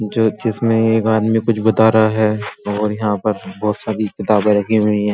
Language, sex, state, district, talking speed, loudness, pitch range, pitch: Hindi, male, Uttar Pradesh, Muzaffarnagar, 210 wpm, -16 LUFS, 105-110 Hz, 110 Hz